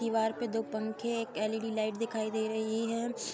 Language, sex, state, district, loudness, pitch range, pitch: Hindi, female, Uttar Pradesh, Jalaun, -34 LUFS, 220-230 Hz, 225 Hz